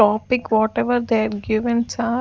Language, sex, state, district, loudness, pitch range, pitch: English, female, Maharashtra, Gondia, -20 LUFS, 220-240 Hz, 230 Hz